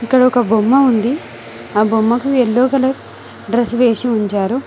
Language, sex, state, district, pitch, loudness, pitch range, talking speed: Telugu, female, Telangana, Mahabubabad, 240 Hz, -14 LUFS, 225-255 Hz, 140 wpm